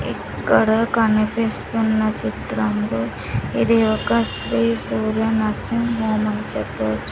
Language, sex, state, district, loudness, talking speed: Telugu, female, Andhra Pradesh, Sri Satya Sai, -20 LUFS, 95 wpm